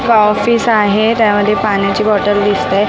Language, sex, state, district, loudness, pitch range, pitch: Marathi, female, Maharashtra, Mumbai Suburban, -12 LUFS, 205-220 Hz, 210 Hz